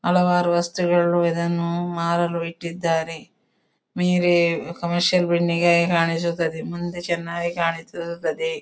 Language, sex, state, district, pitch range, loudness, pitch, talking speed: Kannada, female, Karnataka, Dakshina Kannada, 170-175 Hz, -22 LUFS, 170 Hz, 85 wpm